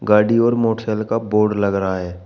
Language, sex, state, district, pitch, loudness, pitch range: Hindi, male, Uttar Pradesh, Shamli, 105 Hz, -18 LUFS, 100-115 Hz